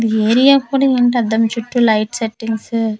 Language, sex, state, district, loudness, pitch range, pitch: Telugu, female, Andhra Pradesh, Manyam, -15 LUFS, 220-245 Hz, 230 Hz